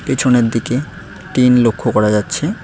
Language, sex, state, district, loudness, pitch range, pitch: Bengali, male, West Bengal, Cooch Behar, -15 LUFS, 110-125 Hz, 120 Hz